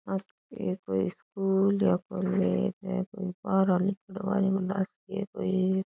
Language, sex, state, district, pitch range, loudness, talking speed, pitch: Rajasthani, female, Rajasthan, Churu, 185-195 Hz, -29 LUFS, 100 wpm, 190 Hz